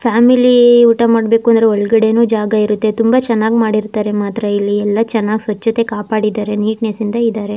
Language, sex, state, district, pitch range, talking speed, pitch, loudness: Kannada, female, Karnataka, Raichur, 210-230 Hz, 150 wpm, 220 Hz, -13 LUFS